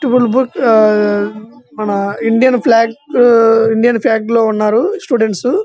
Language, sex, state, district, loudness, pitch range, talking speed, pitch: Telugu, male, Andhra Pradesh, Visakhapatnam, -12 LUFS, 215-250 Hz, 125 wpm, 230 Hz